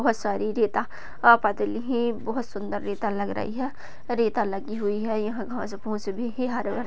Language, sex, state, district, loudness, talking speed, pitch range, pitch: Hindi, female, Maharashtra, Sindhudurg, -26 LUFS, 155 wpm, 205-235 Hz, 220 Hz